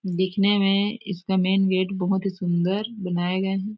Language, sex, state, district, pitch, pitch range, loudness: Hindi, female, Chhattisgarh, Raigarh, 190 Hz, 185-200 Hz, -23 LUFS